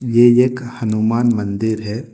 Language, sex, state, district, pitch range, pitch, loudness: Hindi, male, Telangana, Hyderabad, 110-120 Hz, 115 Hz, -16 LUFS